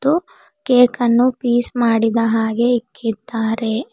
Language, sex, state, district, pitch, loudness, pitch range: Kannada, female, Karnataka, Bidar, 240 Hz, -17 LUFS, 225-245 Hz